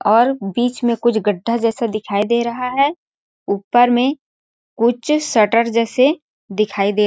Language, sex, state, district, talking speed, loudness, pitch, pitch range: Hindi, female, Chhattisgarh, Balrampur, 155 wpm, -17 LUFS, 235 Hz, 215-250 Hz